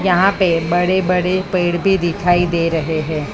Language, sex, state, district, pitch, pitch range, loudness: Hindi, female, Maharashtra, Mumbai Suburban, 175 Hz, 165-185 Hz, -16 LUFS